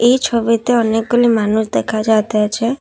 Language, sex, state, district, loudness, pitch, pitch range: Bengali, female, Assam, Kamrup Metropolitan, -15 LUFS, 230 Hz, 220-240 Hz